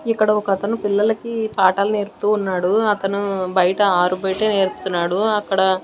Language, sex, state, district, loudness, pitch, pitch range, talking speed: Telugu, female, Andhra Pradesh, Sri Satya Sai, -19 LUFS, 200 Hz, 190-210 Hz, 125 wpm